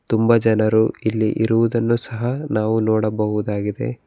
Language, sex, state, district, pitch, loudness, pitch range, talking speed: Kannada, male, Karnataka, Bangalore, 110 Hz, -19 LUFS, 110-115 Hz, 105 wpm